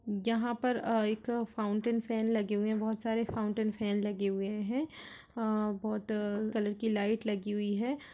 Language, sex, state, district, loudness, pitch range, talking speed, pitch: Hindi, female, Uttar Pradesh, Budaun, -33 LUFS, 210-225 Hz, 185 wpm, 215 Hz